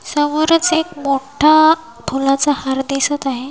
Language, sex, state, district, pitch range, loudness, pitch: Marathi, female, Maharashtra, Washim, 275-310 Hz, -15 LUFS, 290 Hz